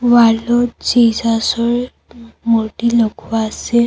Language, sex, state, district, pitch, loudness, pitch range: Assamese, female, Assam, Kamrup Metropolitan, 235 Hz, -15 LUFS, 225-240 Hz